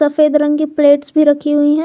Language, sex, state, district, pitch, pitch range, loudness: Hindi, female, Jharkhand, Garhwa, 295 Hz, 290-305 Hz, -13 LUFS